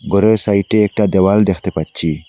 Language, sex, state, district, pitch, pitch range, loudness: Bengali, male, Assam, Hailakandi, 100 Hz, 95-105 Hz, -14 LUFS